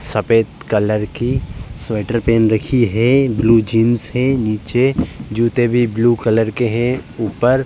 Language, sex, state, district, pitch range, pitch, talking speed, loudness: Hindi, male, Uttar Pradesh, Jalaun, 110-120 Hz, 115 Hz, 150 wpm, -16 LUFS